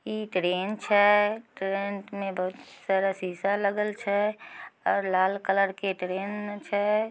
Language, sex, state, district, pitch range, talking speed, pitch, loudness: Magahi, female, Bihar, Samastipur, 195-210 Hz, 135 wpm, 200 Hz, -27 LUFS